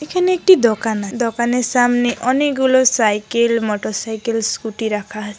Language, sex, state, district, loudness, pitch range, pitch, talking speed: Bengali, female, West Bengal, Paschim Medinipur, -17 LUFS, 215-255 Hz, 230 Hz, 145 wpm